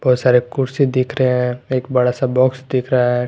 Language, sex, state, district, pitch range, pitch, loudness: Hindi, male, Jharkhand, Garhwa, 125-130 Hz, 130 Hz, -17 LUFS